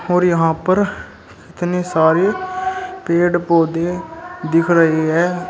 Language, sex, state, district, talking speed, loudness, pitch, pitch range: Hindi, male, Uttar Pradesh, Shamli, 110 wpm, -17 LUFS, 175 Hz, 165-190 Hz